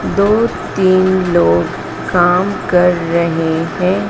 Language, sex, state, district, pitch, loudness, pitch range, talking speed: Hindi, female, Madhya Pradesh, Dhar, 180 Hz, -14 LUFS, 170-190 Hz, 100 wpm